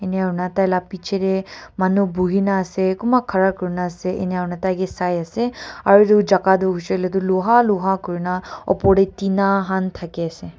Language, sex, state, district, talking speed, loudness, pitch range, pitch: Nagamese, female, Nagaland, Kohima, 175 wpm, -19 LUFS, 180-195 Hz, 190 Hz